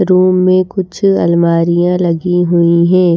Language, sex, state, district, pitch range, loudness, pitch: Hindi, female, Maharashtra, Washim, 170-185 Hz, -11 LUFS, 180 Hz